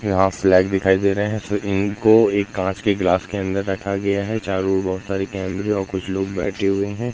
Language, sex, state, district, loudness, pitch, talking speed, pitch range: Hindi, male, Madhya Pradesh, Katni, -20 LUFS, 100 Hz, 235 wpm, 95-100 Hz